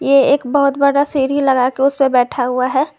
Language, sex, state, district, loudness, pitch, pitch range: Hindi, female, Jharkhand, Garhwa, -15 LUFS, 275 Hz, 255-280 Hz